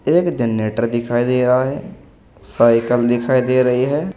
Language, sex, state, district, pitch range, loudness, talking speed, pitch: Hindi, male, Uttar Pradesh, Saharanpur, 120-135 Hz, -16 LUFS, 160 wpm, 125 Hz